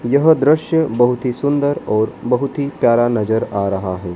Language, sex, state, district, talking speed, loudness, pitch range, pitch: Hindi, male, Madhya Pradesh, Dhar, 185 wpm, -16 LUFS, 110-145 Hz, 125 Hz